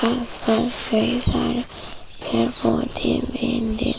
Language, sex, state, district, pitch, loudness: Hindi, female, Arunachal Pradesh, Papum Pare, 225 Hz, -19 LUFS